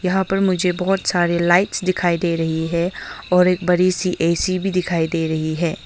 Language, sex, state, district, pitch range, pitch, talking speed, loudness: Hindi, female, Arunachal Pradesh, Longding, 170-185 Hz, 180 Hz, 205 wpm, -19 LUFS